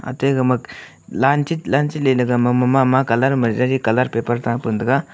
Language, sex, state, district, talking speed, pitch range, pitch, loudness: Wancho, male, Arunachal Pradesh, Longding, 220 wpm, 120-135 Hz, 130 Hz, -18 LUFS